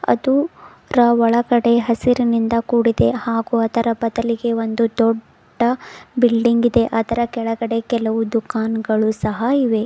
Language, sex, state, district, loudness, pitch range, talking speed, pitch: Kannada, female, Karnataka, Bidar, -18 LUFS, 225-240 Hz, 110 wpm, 230 Hz